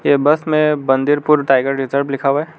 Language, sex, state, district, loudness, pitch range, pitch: Hindi, male, Arunachal Pradesh, Lower Dibang Valley, -15 LUFS, 135-150 Hz, 145 Hz